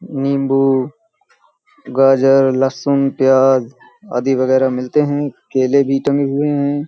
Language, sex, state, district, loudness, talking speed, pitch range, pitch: Hindi, male, Uttar Pradesh, Hamirpur, -15 LUFS, 115 wpm, 130-145 Hz, 135 Hz